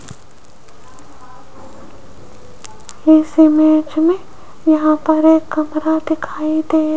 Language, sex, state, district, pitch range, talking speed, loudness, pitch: Hindi, female, Rajasthan, Jaipur, 310-315 Hz, 85 wpm, -14 LUFS, 315 Hz